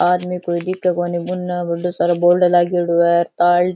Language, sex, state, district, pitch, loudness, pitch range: Rajasthani, female, Rajasthan, Churu, 175 Hz, -17 LUFS, 175-180 Hz